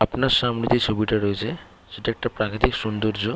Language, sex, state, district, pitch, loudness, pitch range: Bengali, male, West Bengal, Kolkata, 110 Hz, -23 LUFS, 105-120 Hz